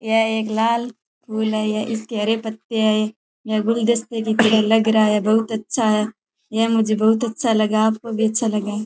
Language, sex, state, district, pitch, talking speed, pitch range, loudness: Rajasthani, male, Rajasthan, Churu, 220 Hz, 205 wpm, 215-225 Hz, -19 LUFS